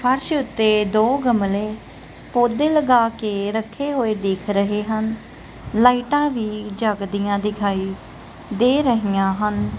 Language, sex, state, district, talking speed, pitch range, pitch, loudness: Punjabi, female, Punjab, Kapurthala, 110 wpm, 205-245 Hz, 215 Hz, -20 LUFS